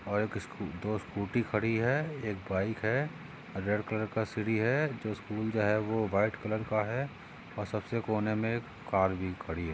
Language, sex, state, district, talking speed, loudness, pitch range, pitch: Hindi, male, Maharashtra, Sindhudurg, 205 wpm, -33 LUFS, 100-115 Hz, 110 Hz